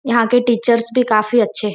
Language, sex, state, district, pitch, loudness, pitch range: Hindi, female, Maharashtra, Nagpur, 235 Hz, -15 LUFS, 225-245 Hz